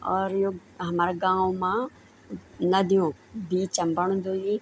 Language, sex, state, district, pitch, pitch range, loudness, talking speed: Garhwali, female, Uttarakhand, Tehri Garhwal, 185 Hz, 180-195 Hz, -26 LUFS, 115 wpm